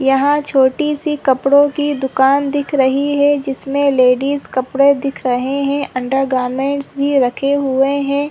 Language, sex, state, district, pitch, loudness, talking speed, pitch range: Hindi, female, Chhattisgarh, Balrampur, 275 Hz, -15 LUFS, 150 wpm, 265-285 Hz